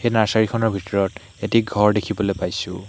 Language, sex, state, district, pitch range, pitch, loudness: Assamese, male, Assam, Hailakandi, 100-110 Hz, 105 Hz, -21 LUFS